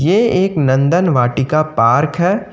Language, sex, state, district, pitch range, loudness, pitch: Hindi, male, Jharkhand, Ranchi, 135-185 Hz, -14 LUFS, 155 Hz